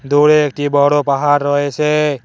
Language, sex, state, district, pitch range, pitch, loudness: Bengali, male, West Bengal, Cooch Behar, 145-150 Hz, 145 Hz, -14 LUFS